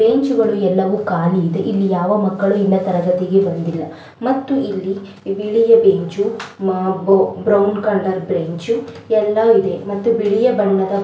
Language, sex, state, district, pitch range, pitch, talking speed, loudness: Kannada, female, Karnataka, Belgaum, 190-215 Hz, 200 Hz, 125 wpm, -17 LUFS